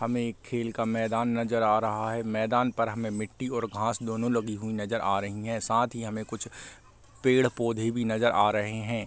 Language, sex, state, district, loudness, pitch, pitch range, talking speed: Hindi, male, Bihar, Gopalganj, -28 LUFS, 115 Hz, 110-115 Hz, 230 wpm